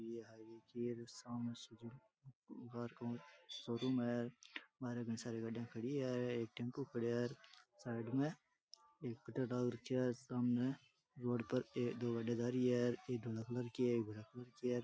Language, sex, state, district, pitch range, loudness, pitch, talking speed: Rajasthani, male, Rajasthan, Nagaur, 115-125 Hz, -43 LUFS, 120 Hz, 75 wpm